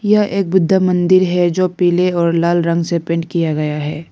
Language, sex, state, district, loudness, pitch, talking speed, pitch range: Hindi, female, Arunachal Pradesh, Lower Dibang Valley, -15 LUFS, 175 Hz, 220 wpm, 170-185 Hz